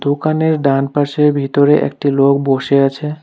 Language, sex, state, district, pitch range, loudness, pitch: Bengali, male, West Bengal, Alipurduar, 140-150 Hz, -14 LUFS, 140 Hz